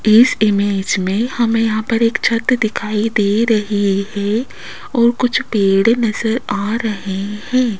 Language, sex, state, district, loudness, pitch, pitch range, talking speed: Hindi, female, Rajasthan, Jaipur, -16 LUFS, 220 Hz, 205-230 Hz, 145 wpm